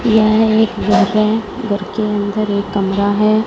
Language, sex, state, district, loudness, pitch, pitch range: Hindi, female, Punjab, Fazilka, -15 LUFS, 215 Hz, 205-220 Hz